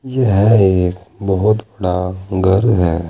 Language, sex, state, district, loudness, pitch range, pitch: Hindi, male, Uttar Pradesh, Saharanpur, -15 LUFS, 90-110 Hz, 95 Hz